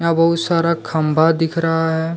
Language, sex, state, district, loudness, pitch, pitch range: Hindi, male, Jharkhand, Deoghar, -17 LUFS, 165 Hz, 160-165 Hz